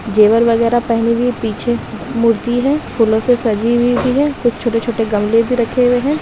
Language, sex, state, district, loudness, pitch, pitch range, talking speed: Hindi, female, Bihar, Bhagalpur, -15 LUFS, 235 Hz, 225-245 Hz, 195 wpm